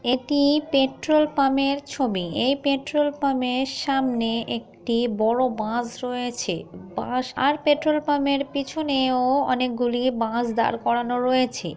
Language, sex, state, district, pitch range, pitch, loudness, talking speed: Bengali, female, West Bengal, Malda, 240-280 Hz, 255 Hz, -23 LUFS, 125 wpm